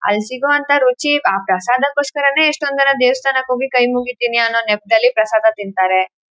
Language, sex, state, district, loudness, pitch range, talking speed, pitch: Kannada, female, Karnataka, Chamarajanagar, -15 LUFS, 220-280 Hz, 140 wpm, 250 Hz